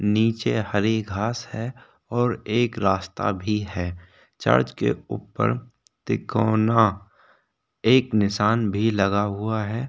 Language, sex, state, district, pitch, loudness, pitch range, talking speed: Hindi, male, Maharashtra, Chandrapur, 110 Hz, -23 LUFS, 100-115 Hz, 115 wpm